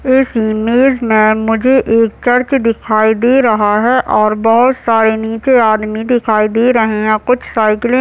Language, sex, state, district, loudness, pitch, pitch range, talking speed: Hindi, female, Bihar, Madhepura, -12 LUFS, 225 Hz, 215-250 Hz, 170 wpm